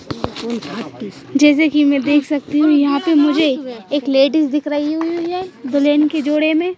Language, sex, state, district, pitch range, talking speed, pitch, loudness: Hindi, female, Madhya Pradesh, Bhopal, 285-310 Hz, 175 wpm, 295 Hz, -16 LUFS